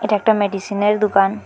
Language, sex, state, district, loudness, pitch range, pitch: Bengali, female, Assam, Hailakandi, -17 LUFS, 200-210 Hz, 205 Hz